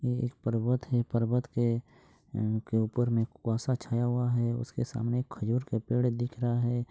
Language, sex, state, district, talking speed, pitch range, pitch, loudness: Hindi, male, Jharkhand, Sahebganj, 165 wpm, 115-125 Hz, 120 Hz, -31 LUFS